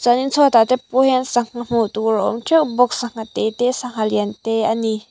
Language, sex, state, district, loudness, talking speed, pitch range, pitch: Mizo, female, Mizoram, Aizawl, -18 LUFS, 235 wpm, 220-255 Hz, 240 Hz